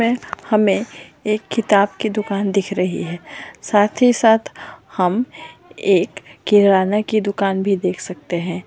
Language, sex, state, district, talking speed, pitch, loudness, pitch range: Marwari, female, Rajasthan, Churu, 145 wpm, 200 Hz, -18 LUFS, 190-215 Hz